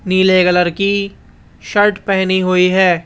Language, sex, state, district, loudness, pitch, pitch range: Hindi, male, Rajasthan, Jaipur, -13 LUFS, 185 Hz, 180-200 Hz